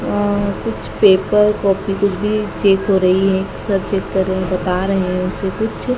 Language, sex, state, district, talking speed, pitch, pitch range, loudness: Hindi, female, Madhya Pradesh, Dhar, 190 wpm, 195 Hz, 185-205 Hz, -17 LUFS